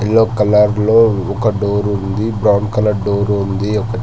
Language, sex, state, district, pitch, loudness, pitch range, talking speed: Telugu, male, Telangana, Hyderabad, 105 Hz, -14 LUFS, 100-110 Hz, 150 wpm